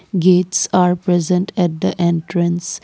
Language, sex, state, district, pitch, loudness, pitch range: English, female, Assam, Kamrup Metropolitan, 180 Hz, -16 LUFS, 175-185 Hz